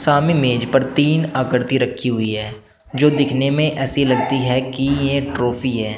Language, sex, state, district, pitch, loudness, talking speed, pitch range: Hindi, male, Uttar Pradesh, Shamli, 130 Hz, -18 LUFS, 180 wpm, 125-140 Hz